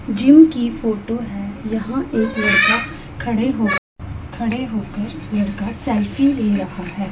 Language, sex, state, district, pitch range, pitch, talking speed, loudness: Hindi, female, Punjab, Pathankot, 205-240 Hz, 225 Hz, 135 wpm, -18 LUFS